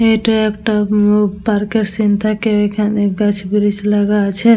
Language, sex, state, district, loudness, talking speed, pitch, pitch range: Bengali, female, West Bengal, Dakshin Dinajpur, -15 LUFS, 145 wpm, 210 Hz, 205-215 Hz